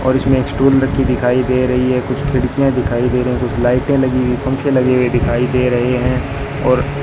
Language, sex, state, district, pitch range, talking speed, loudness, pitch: Hindi, male, Rajasthan, Bikaner, 125-130 Hz, 230 wpm, -15 LUFS, 125 Hz